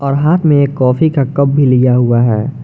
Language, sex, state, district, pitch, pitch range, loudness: Hindi, male, Jharkhand, Garhwa, 140 Hz, 125-145 Hz, -11 LUFS